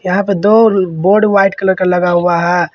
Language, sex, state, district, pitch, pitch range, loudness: Hindi, male, Jharkhand, Ranchi, 190 Hz, 175-200 Hz, -11 LUFS